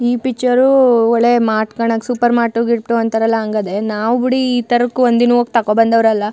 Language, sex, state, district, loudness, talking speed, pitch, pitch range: Kannada, female, Karnataka, Chamarajanagar, -14 LUFS, 170 wpm, 235 Hz, 225-245 Hz